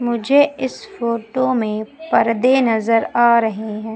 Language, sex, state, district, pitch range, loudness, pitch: Hindi, female, Madhya Pradesh, Umaria, 220-255 Hz, -17 LUFS, 235 Hz